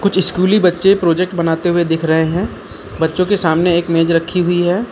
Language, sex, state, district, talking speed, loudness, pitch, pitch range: Hindi, male, Uttar Pradesh, Lucknow, 195 wpm, -15 LUFS, 175 Hz, 165-185 Hz